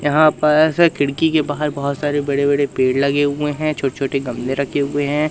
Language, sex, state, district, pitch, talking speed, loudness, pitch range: Hindi, male, Madhya Pradesh, Umaria, 145 Hz, 225 wpm, -18 LUFS, 140-150 Hz